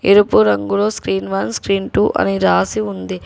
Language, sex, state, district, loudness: Telugu, female, Telangana, Hyderabad, -16 LUFS